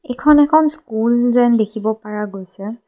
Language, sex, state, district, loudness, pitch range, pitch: Assamese, female, Assam, Kamrup Metropolitan, -16 LUFS, 210-255 Hz, 230 Hz